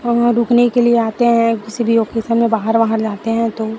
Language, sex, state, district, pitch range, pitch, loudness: Hindi, female, Chhattisgarh, Raipur, 225-235 Hz, 230 Hz, -15 LUFS